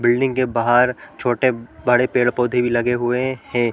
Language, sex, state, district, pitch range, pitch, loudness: Hindi, male, Chhattisgarh, Balrampur, 120-125 Hz, 125 Hz, -19 LUFS